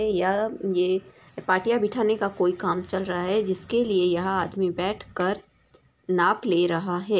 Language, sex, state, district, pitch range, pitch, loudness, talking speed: Hindi, female, Bihar, Samastipur, 180-200 Hz, 185 Hz, -25 LUFS, 165 wpm